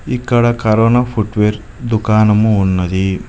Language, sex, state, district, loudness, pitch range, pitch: Telugu, male, Telangana, Mahabubabad, -14 LUFS, 105-120 Hz, 110 Hz